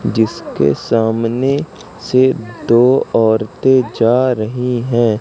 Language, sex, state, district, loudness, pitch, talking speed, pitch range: Hindi, male, Madhya Pradesh, Katni, -15 LUFS, 115 Hz, 90 wpm, 110-125 Hz